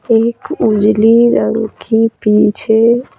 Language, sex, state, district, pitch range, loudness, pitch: Hindi, female, Bihar, Patna, 215-230 Hz, -12 LUFS, 225 Hz